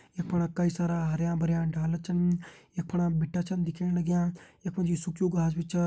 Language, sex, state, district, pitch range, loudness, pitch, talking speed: Hindi, male, Uttarakhand, Uttarkashi, 170-175 Hz, -30 LUFS, 175 Hz, 205 wpm